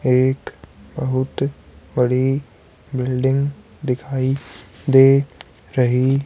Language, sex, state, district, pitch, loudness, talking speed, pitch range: Hindi, female, Haryana, Charkhi Dadri, 130 Hz, -19 LUFS, 65 wpm, 125-135 Hz